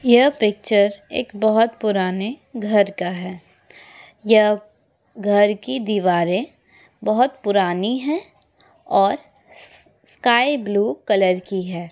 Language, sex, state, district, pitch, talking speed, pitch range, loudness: Hindi, female, Uttar Pradesh, Etah, 210 Hz, 110 wpm, 195-235 Hz, -19 LUFS